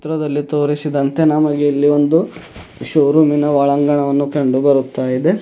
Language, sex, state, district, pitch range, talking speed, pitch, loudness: Kannada, male, Karnataka, Bidar, 140-150 Hz, 110 wpm, 145 Hz, -15 LUFS